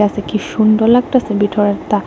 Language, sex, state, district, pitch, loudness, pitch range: Bengali, female, Tripura, West Tripura, 210 Hz, -14 LUFS, 205-220 Hz